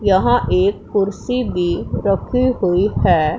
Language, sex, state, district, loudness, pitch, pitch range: Hindi, female, Punjab, Pathankot, -17 LUFS, 200 Hz, 190-245 Hz